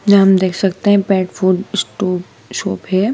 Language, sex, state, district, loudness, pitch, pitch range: Hindi, female, Madhya Pradesh, Dhar, -15 LUFS, 190 Hz, 185-200 Hz